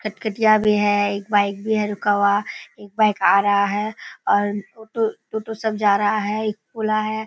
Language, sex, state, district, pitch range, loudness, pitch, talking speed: Hindi, female, Bihar, Kishanganj, 205-215 Hz, -20 LUFS, 210 Hz, 200 wpm